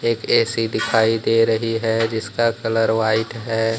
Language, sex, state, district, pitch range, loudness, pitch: Hindi, male, Jharkhand, Deoghar, 110-115 Hz, -19 LUFS, 115 Hz